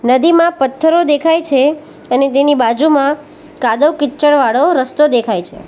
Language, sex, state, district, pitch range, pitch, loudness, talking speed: Gujarati, female, Gujarat, Valsad, 260-310 Hz, 290 Hz, -12 LUFS, 135 wpm